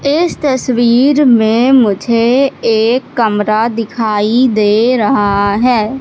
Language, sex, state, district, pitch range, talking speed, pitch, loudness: Hindi, female, Madhya Pradesh, Katni, 220-260 Hz, 100 wpm, 235 Hz, -11 LUFS